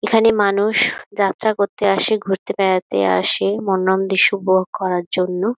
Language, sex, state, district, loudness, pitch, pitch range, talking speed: Bengali, female, West Bengal, Jhargram, -18 LUFS, 195 Hz, 185-205 Hz, 140 wpm